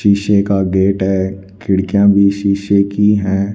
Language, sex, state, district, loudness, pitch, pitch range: Hindi, male, Haryana, Rohtak, -14 LUFS, 100 Hz, 95-100 Hz